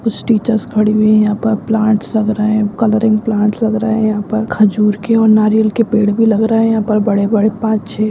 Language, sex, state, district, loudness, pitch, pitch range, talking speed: Hindi, female, Uttarakhand, Tehri Garhwal, -13 LUFS, 215 Hz, 215-220 Hz, 245 wpm